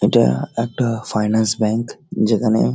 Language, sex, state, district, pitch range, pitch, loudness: Bengali, male, West Bengal, Dakshin Dinajpur, 105-115 Hz, 110 Hz, -19 LUFS